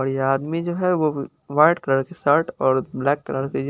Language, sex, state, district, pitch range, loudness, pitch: Hindi, male, Chandigarh, Chandigarh, 135-165 Hz, -21 LUFS, 140 Hz